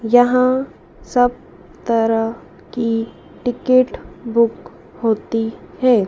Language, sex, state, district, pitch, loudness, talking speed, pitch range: Hindi, female, Madhya Pradesh, Dhar, 235 Hz, -18 LUFS, 80 wpm, 225-250 Hz